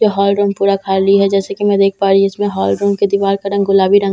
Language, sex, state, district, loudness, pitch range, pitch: Hindi, female, Bihar, Katihar, -13 LUFS, 195-200 Hz, 200 Hz